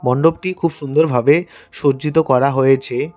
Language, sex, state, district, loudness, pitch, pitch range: Bengali, male, West Bengal, Cooch Behar, -16 LUFS, 145 Hz, 135-160 Hz